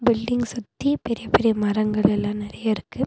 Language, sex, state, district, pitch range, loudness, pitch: Tamil, female, Tamil Nadu, Nilgiris, 210-240 Hz, -23 LUFS, 225 Hz